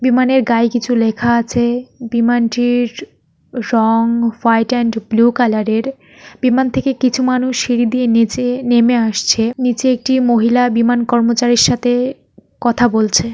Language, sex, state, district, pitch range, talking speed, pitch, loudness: Bengali, male, West Bengal, North 24 Parganas, 230-250 Hz, 130 wpm, 240 Hz, -14 LUFS